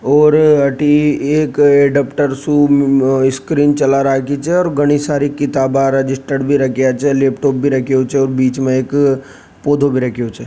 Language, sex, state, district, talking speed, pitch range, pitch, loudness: Rajasthani, male, Rajasthan, Nagaur, 160 wpm, 135-145 Hz, 140 Hz, -13 LUFS